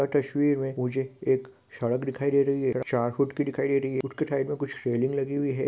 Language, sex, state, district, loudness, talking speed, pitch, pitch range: Hindi, male, Andhra Pradesh, Srikakulam, -27 LUFS, 285 wpm, 135 Hz, 130-140 Hz